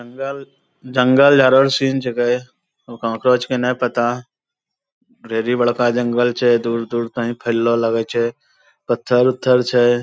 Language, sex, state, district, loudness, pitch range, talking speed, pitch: Angika, male, Bihar, Bhagalpur, -17 LUFS, 120-130 Hz, 130 wpm, 125 Hz